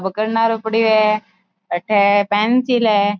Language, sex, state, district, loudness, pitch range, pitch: Marwari, female, Rajasthan, Churu, -16 LUFS, 200-220 Hz, 215 Hz